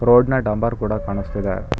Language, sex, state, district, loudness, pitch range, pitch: Kannada, male, Karnataka, Bangalore, -20 LUFS, 100-120 Hz, 105 Hz